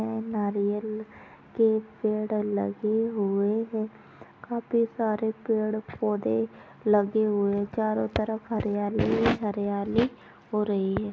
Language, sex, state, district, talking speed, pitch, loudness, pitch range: Hindi, female, Goa, North and South Goa, 110 wpm, 215 Hz, -27 LUFS, 205-220 Hz